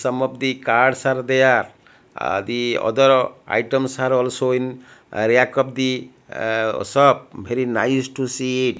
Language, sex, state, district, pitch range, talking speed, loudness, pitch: English, male, Odisha, Malkangiri, 125-130 Hz, 155 wpm, -19 LUFS, 130 Hz